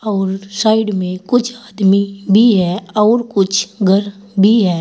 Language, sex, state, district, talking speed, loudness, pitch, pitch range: Hindi, female, Uttar Pradesh, Saharanpur, 150 wpm, -14 LUFS, 200 Hz, 195-215 Hz